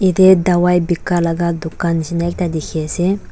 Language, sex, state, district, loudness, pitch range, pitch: Nagamese, female, Nagaland, Dimapur, -16 LUFS, 165-180 Hz, 175 Hz